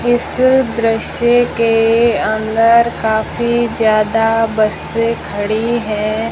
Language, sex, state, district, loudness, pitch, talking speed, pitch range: Hindi, female, Rajasthan, Jaisalmer, -14 LUFS, 225 Hz, 85 wpm, 220-235 Hz